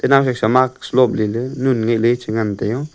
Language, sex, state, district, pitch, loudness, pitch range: Wancho, male, Arunachal Pradesh, Longding, 125 Hz, -17 LUFS, 110-130 Hz